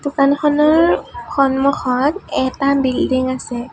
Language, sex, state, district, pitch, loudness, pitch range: Assamese, female, Assam, Sonitpur, 275 Hz, -16 LUFS, 260-295 Hz